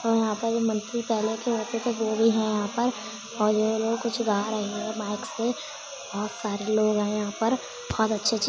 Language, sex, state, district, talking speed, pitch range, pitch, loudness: Hindi, female, Uttar Pradesh, Budaun, 170 wpm, 210-230 Hz, 220 Hz, -27 LUFS